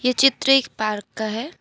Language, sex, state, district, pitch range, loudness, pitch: Hindi, female, Assam, Kamrup Metropolitan, 215-270 Hz, -20 LUFS, 250 Hz